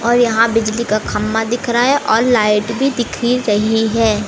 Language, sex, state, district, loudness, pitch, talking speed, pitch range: Hindi, female, Madhya Pradesh, Umaria, -15 LUFS, 230 Hz, 210 wpm, 220-240 Hz